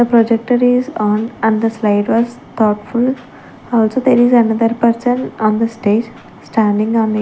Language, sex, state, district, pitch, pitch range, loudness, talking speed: English, female, Chandigarh, Chandigarh, 230 Hz, 220-240 Hz, -14 LUFS, 165 wpm